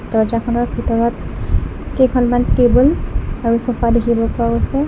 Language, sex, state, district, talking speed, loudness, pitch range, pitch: Assamese, female, Assam, Kamrup Metropolitan, 110 wpm, -16 LUFS, 230-245 Hz, 235 Hz